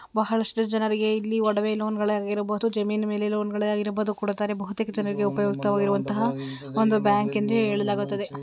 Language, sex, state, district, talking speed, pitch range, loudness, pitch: Kannada, female, Karnataka, Belgaum, 145 wpm, 205-215 Hz, -25 LUFS, 210 Hz